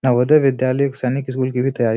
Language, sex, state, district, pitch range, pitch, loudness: Hindi, male, Bihar, Muzaffarpur, 125-135 Hz, 130 Hz, -18 LUFS